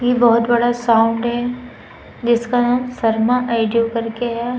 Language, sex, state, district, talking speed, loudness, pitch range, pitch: Hindi, female, Uttar Pradesh, Muzaffarnagar, 145 wpm, -17 LUFS, 230-245 Hz, 240 Hz